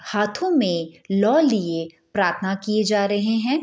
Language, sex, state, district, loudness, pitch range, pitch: Hindi, female, Bihar, Bhagalpur, -21 LUFS, 180-220 Hz, 205 Hz